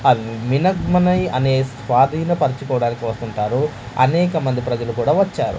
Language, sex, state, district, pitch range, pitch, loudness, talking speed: Telugu, male, Andhra Pradesh, Manyam, 120-160 Hz, 130 Hz, -19 LUFS, 130 wpm